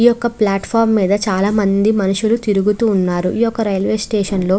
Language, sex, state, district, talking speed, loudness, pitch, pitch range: Telugu, female, Andhra Pradesh, Krishna, 170 wpm, -16 LUFS, 210 Hz, 195-220 Hz